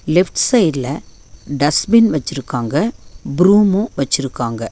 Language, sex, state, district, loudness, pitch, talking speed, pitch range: Tamil, female, Tamil Nadu, Nilgiris, -16 LUFS, 145 Hz, 75 wpm, 125-190 Hz